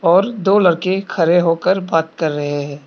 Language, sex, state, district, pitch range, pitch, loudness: Hindi, male, Arunachal Pradesh, Papum Pare, 160-190 Hz, 170 Hz, -16 LUFS